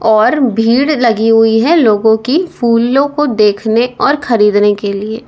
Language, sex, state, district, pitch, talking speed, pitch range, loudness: Hindi, female, Uttar Pradesh, Lalitpur, 230 Hz, 160 wpm, 220-265 Hz, -11 LUFS